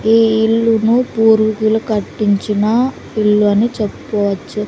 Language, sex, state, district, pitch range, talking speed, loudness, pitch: Telugu, female, Andhra Pradesh, Sri Satya Sai, 210-225 Hz, 75 wpm, -14 LUFS, 220 Hz